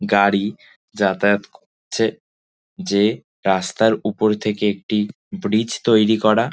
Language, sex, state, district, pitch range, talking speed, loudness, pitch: Bengali, male, West Bengal, Dakshin Dinajpur, 100-110 Hz, 100 wpm, -19 LUFS, 105 Hz